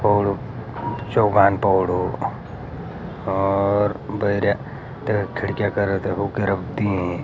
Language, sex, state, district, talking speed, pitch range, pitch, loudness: Garhwali, male, Uttarakhand, Uttarkashi, 75 wpm, 95-105 Hz, 100 Hz, -21 LUFS